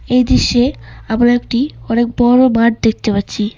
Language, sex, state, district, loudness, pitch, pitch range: Bengali, female, West Bengal, Cooch Behar, -14 LUFS, 240 Hz, 225-245 Hz